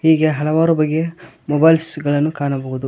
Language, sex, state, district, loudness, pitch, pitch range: Kannada, male, Karnataka, Koppal, -17 LUFS, 155 Hz, 145-160 Hz